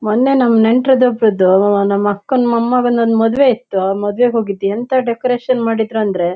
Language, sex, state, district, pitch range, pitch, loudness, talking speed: Kannada, female, Karnataka, Shimoga, 205-245 Hz, 230 Hz, -14 LUFS, 140 wpm